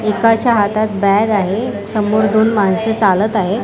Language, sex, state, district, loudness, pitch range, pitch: Marathi, female, Maharashtra, Mumbai Suburban, -14 LUFS, 200-220 Hz, 215 Hz